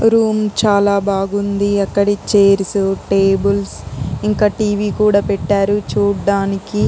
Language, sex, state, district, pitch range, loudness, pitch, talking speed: Telugu, female, Andhra Pradesh, Guntur, 195-205 Hz, -15 LUFS, 200 Hz, 120 wpm